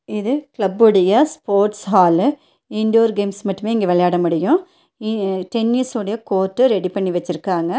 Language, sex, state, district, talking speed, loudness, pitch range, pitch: Tamil, female, Tamil Nadu, Nilgiris, 130 wpm, -17 LUFS, 190-230 Hz, 210 Hz